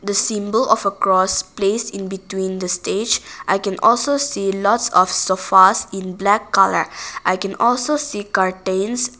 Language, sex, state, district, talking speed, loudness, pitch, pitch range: English, female, Nagaland, Kohima, 155 wpm, -18 LUFS, 195 Hz, 190-210 Hz